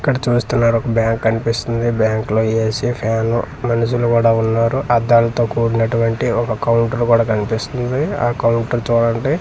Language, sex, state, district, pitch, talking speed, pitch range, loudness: Telugu, male, Andhra Pradesh, Manyam, 115 Hz, 145 wpm, 115-120 Hz, -17 LUFS